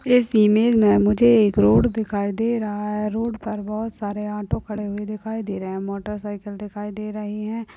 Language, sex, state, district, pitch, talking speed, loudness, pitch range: Hindi, female, Uttar Pradesh, Deoria, 210 Hz, 210 wpm, -22 LUFS, 205-220 Hz